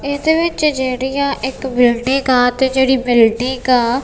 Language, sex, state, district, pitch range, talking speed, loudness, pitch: Punjabi, female, Punjab, Kapurthala, 250-275 Hz, 150 wpm, -15 LUFS, 260 Hz